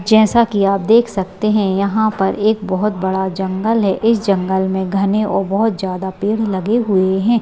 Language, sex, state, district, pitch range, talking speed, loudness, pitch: Hindi, female, Bihar, Madhepura, 190-220 Hz, 195 wpm, -16 LUFS, 200 Hz